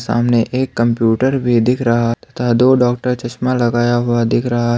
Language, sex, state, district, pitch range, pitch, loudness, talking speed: Hindi, male, Jharkhand, Ranchi, 120-125 Hz, 120 Hz, -15 LUFS, 190 wpm